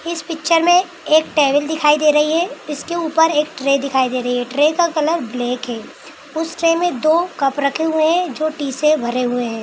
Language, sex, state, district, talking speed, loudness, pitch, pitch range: Hindi, female, Bihar, Saran, 225 wpm, -17 LUFS, 305 Hz, 275-330 Hz